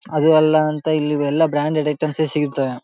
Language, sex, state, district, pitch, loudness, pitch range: Kannada, male, Karnataka, Bellary, 155 Hz, -18 LUFS, 150-155 Hz